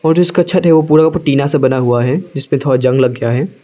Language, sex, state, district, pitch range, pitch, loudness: Hindi, male, Arunachal Pradesh, Lower Dibang Valley, 130-165 Hz, 140 Hz, -12 LUFS